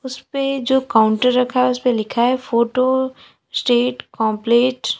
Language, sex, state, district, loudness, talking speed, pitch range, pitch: Hindi, female, Uttar Pradesh, Lalitpur, -18 LUFS, 145 wpm, 235-260 Hz, 250 Hz